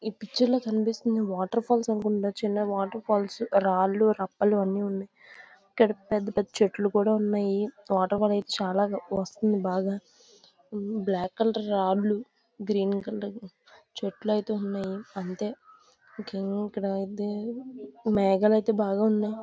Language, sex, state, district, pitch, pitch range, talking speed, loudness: Telugu, female, Andhra Pradesh, Visakhapatnam, 210 Hz, 195-220 Hz, 125 wpm, -27 LUFS